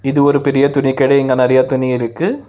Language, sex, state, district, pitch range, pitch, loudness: Tamil, male, Tamil Nadu, Chennai, 130-140 Hz, 135 Hz, -14 LUFS